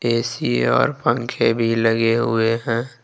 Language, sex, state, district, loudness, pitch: Hindi, male, Jharkhand, Ranchi, -19 LUFS, 115 Hz